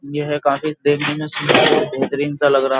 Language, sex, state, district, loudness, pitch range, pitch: Hindi, male, Uttar Pradesh, Jyotiba Phule Nagar, -17 LUFS, 140-150 Hz, 145 Hz